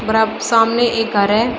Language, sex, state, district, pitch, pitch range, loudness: Hindi, female, Uttar Pradesh, Shamli, 225 Hz, 220-230 Hz, -15 LUFS